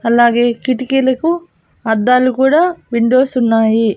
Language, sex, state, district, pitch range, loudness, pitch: Telugu, female, Andhra Pradesh, Annamaya, 235-265 Hz, -13 LUFS, 250 Hz